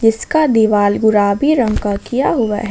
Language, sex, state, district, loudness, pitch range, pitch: Hindi, female, Jharkhand, Ranchi, -14 LUFS, 205-245 Hz, 220 Hz